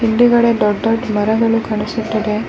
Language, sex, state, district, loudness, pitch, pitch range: Kannada, female, Karnataka, Bellary, -15 LUFS, 225 Hz, 215-230 Hz